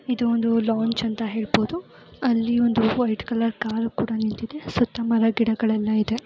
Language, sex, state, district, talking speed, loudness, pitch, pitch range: Kannada, female, Karnataka, Gulbarga, 165 wpm, -23 LUFS, 230 Hz, 220-235 Hz